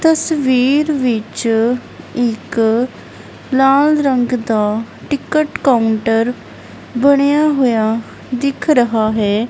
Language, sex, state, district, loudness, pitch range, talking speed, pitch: Punjabi, female, Punjab, Kapurthala, -15 LUFS, 225-280 Hz, 80 wpm, 250 Hz